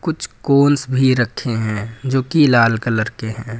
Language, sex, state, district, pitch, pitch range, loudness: Hindi, male, Uttar Pradesh, Lucknow, 120 Hz, 115-130 Hz, -17 LUFS